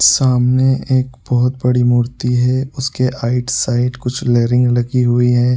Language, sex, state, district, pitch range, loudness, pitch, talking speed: Hindi, male, Uttar Pradesh, Budaun, 120-130 Hz, -15 LUFS, 125 Hz, 150 wpm